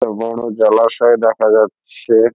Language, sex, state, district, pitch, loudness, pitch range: Bengali, male, West Bengal, Dakshin Dinajpur, 115 Hz, -14 LUFS, 110-115 Hz